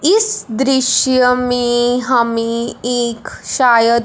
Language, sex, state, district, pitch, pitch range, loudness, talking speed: Hindi, male, Punjab, Fazilka, 245 Hz, 235-255 Hz, -14 LUFS, 90 wpm